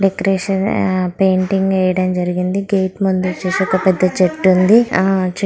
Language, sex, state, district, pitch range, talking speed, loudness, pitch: Telugu, female, Andhra Pradesh, Srikakulam, 185-195 Hz, 120 wpm, -15 LUFS, 190 Hz